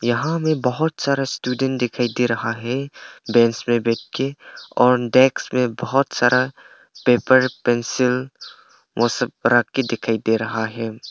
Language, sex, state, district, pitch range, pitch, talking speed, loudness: Hindi, male, Arunachal Pradesh, Papum Pare, 115-130 Hz, 125 Hz, 150 wpm, -20 LUFS